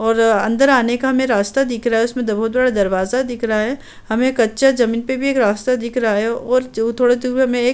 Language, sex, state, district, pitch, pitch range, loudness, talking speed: Hindi, female, Uttar Pradesh, Muzaffarnagar, 240 Hz, 225-255 Hz, -17 LUFS, 250 wpm